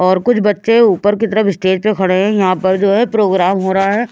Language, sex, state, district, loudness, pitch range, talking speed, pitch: Hindi, female, Haryana, Rohtak, -13 LUFS, 190-215 Hz, 260 wpm, 200 Hz